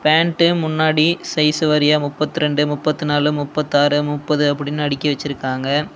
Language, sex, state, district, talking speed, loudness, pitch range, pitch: Tamil, male, Tamil Nadu, Nilgiris, 130 wpm, -18 LUFS, 145-155 Hz, 150 Hz